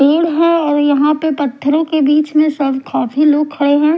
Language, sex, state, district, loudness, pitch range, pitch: Hindi, female, Himachal Pradesh, Shimla, -13 LUFS, 285-310 Hz, 295 Hz